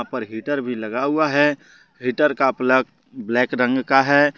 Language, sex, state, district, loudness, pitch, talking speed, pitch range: Hindi, male, Jharkhand, Deoghar, -20 LUFS, 130 Hz, 180 wpm, 125-145 Hz